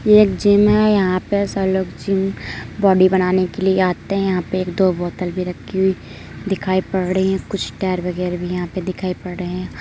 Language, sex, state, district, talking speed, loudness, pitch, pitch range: Hindi, male, Bihar, Madhepura, 225 wpm, -18 LUFS, 185 Hz, 180-195 Hz